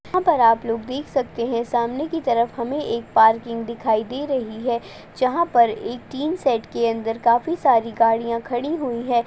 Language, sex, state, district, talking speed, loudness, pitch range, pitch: Hindi, female, Uttar Pradesh, Ghazipur, 195 wpm, -21 LUFS, 230-270 Hz, 235 Hz